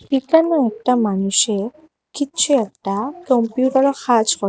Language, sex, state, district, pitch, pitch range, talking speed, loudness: Bengali, female, Assam, Hailakandi, 255 Hz, 215-280 Hz, 105 wpm, -18 LUFS